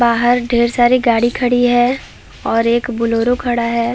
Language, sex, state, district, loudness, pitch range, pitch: Hindi, female, Chhattisgarh, Balrampur, -15 LUFS, 235-245 Hz, 240 Hz